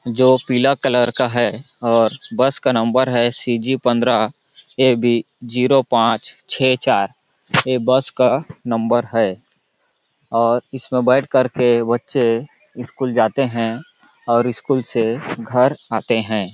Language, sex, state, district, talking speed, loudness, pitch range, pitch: Hindi, male, Chhattisgarh, Balrampur, 135 wpm, -18 LUFS, 115-130 Hz, 125 Hz